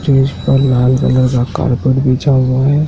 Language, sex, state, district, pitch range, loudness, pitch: Hindi, male, Madhya Pradesh, Dhar, 130-135 Hz, -13 LUFS, 130 Hz